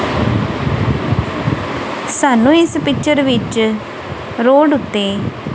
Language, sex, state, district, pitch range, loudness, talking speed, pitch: Punjabi, female, Punjab, Kapurthala, 215-295 Hz, -15 LUFS, 65 wpm, 255 Hz